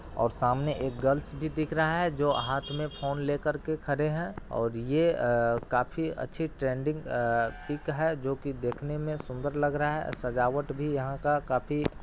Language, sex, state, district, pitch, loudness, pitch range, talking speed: Hindi, male, Bihar, Araria, 145 Hz, -30 LUFS, 125-150 Hz, 195 wpm